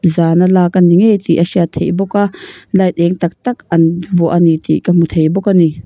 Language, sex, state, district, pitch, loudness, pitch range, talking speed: Mizo, female, Mizoram, Aizawl, 175 Hz, -12 LUFS, 170-190 Hz, 255 wpm